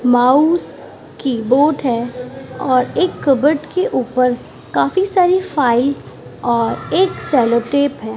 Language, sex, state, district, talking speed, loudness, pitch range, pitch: Hindi, female, Maharashtra, Mumbai Suburban, 115 wpm, -16 LUFS, 245-310 Hz, 265 Hz